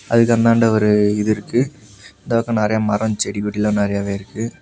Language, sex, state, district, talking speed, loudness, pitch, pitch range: Tamil, male, Tamil Nadu, Nilgiris, 155 wpm, -18 LUFS, 105 Hz, 105-115 Hz